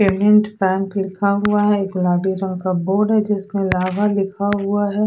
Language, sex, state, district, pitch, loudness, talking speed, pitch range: Hindi, female, Odisha, Sambalpur, 200 Hz, -18 LUFS, 225 wpm, 190-205 Hz